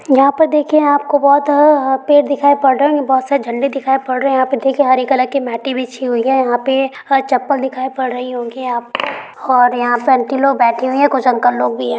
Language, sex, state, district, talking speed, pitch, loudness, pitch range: Hindi, female, Bihar, Gaya, 250 wpm, 265 Hz, -14 LUFS, 255-280 Hz